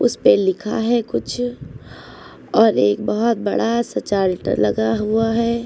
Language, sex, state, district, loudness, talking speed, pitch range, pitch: Hindi, female, Uttar Pradesh, Lucknow, -18 LUFS, 140 wpm, 190-235 Hz, 225 Hz